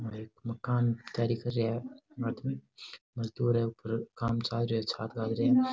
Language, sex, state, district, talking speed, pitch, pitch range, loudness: Rajasthani, male, Rajasthan, Nagaur, 155 wpm, 115 Hz, 115-120 Hz, -32 LUFS